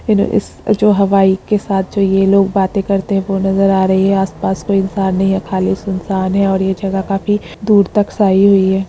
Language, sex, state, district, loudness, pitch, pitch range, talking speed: Hindi, female, Bihar, Lakhisarai, -14 LUFS, 195 Hz, 190-200 Hz, 235 wpm